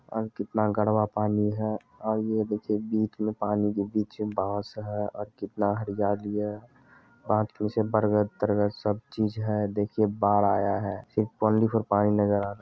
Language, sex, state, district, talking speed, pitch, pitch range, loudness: Maithili, male, Bihar, Supaul, 160 wpm, 105 Hz, 105-110 Hz, -27 LUFS